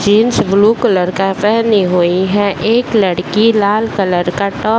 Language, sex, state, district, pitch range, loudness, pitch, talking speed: Hindi, female, Bihar, Bhagalpur, 185-220 Hz, -13 LUFS, 200 Hz, 175 wpm